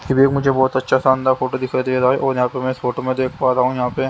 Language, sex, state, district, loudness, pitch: Hindi, male, Haryana, Jhajjar, -18 LUFS, 130 Hz